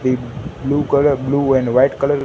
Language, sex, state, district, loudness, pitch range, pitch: Hindi, male, Gujarat, Gandhinagar, -16 LUFS, 130-140 Hz, 135 Hz